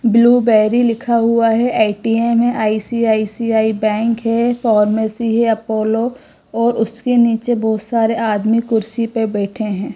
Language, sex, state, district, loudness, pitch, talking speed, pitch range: Hindi, female, Gujarat, Gandhinagar, -15 LUFS, 225 Hz, 130 wpm, 220-235 Hz